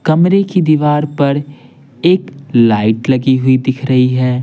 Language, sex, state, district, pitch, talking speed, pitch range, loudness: Hindi, male, Bihar, Patna, 140 Hz, 150 wpm, 130-150 Hz, -13 LUFS